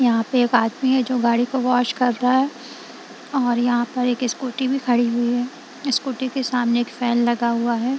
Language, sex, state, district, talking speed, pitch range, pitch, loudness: Hindi, female, Punjab, Kapurthala, 220 wpm, 240-260 Hz, 245 Hz, -20 LUFS